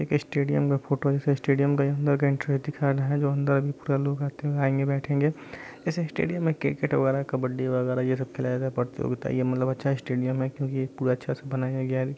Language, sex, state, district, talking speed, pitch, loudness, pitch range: Bhojpuri, male, Bihar, Saran, 235 wpm, 140 Hz, -26 LUFS, 130-145 Hz